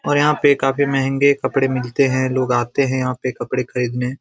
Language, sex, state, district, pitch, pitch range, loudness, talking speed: Hindi, male, Bihar, Jamui, 130 Hz, 125-140 Hz, -18 LUFS, 215 wpm